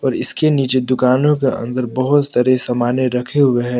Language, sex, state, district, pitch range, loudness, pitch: Hindi, male, Jharkhand, Palamu, 125-135 Hz, -16 LUFS, 130 Hz